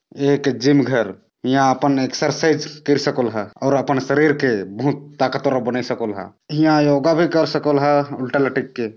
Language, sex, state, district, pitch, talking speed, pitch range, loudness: Chhattisgarhi, male, Chhattisgarh, Jashpur, 140 Hz, 180 wpm, 130-145 Hz, -18 LUFS